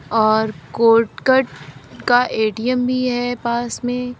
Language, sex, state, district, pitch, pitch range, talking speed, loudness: Hindi, female, Uttar Pradesh, Lalitpur, 245 Hz, 225-250 Hz, 115 wpm, -18 LUFS